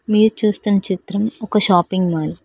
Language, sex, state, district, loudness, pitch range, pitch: Telugu, female, Telangana, Hyderabad, -17 LUFS, 185-215 Hz, 205 Hz